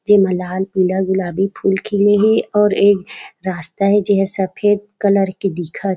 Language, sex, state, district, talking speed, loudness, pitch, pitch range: Chhattisgarhi, female, Chhattisgarh, Raigarh, 160 wpm, -16 LUFS, 195 Hz, 190-205 Hz